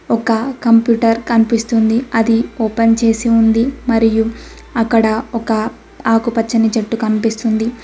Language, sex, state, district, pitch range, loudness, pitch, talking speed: Telugu, female, Telangana, Mahabubabad, 225-230 Hz, -15 LUFS, 230 Hz, 100 wpm